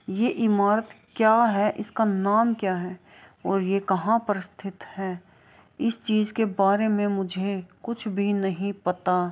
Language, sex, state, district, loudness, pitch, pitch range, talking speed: Hindi, female, Bihar, Kishanganj, -25 LUFS, 200 Hz, 195-220 Hz, 155 wpm